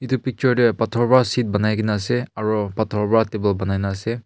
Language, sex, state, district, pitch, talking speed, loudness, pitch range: Nagamese, male, Nagaland, Kohima, 110 Hz, 225 wpm, -20 LUFS, 105-120 Hz